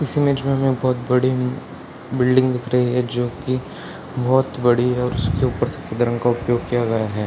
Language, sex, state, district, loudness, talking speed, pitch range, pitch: Hindi, male, Bihar, Sitamarhi, -20 LUFS, 205 wpm, 120-130 Hz, 125 Hz